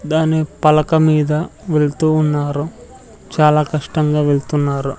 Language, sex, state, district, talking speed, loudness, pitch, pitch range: Telugu, male, Andhra Pradesh, Sri Satya Sai, 95 wpm, -16 LUFS, 150 Hz, 150-155 Hz